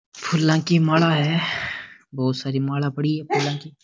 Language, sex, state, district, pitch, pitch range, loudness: Rajasthani, male, Rajasthan, Nagaur, 150 Hz, 140-160 Hz, -21 LUFS